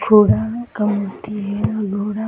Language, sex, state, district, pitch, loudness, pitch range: Hindi, female, Bihar, Darbhanga, 210 Hz, -19 LUFS, 205-215 Hz